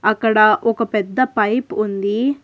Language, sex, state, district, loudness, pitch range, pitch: Telugu, female, Telangana, Hyderabad, -17 LUFS, 215-240 Hz, 220 Hz